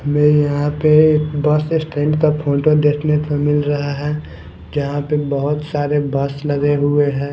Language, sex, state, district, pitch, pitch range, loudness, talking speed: Hindi, male, Punjab, Kapurthala, 145 Hz, 145-150 Hz, -17 LUFS, 165 wpm